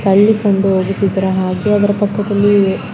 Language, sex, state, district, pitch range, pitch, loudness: Kannada, female, Karnataka, Bangalore, 190-205 Hz, 200 Hz, -14 LUFS